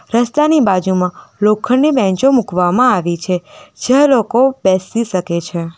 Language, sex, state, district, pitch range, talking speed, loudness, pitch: Gujarati, female, Gujarat, Valsad, 180-265 Hz, 125 wpm, -14 LUFS, 215 Hz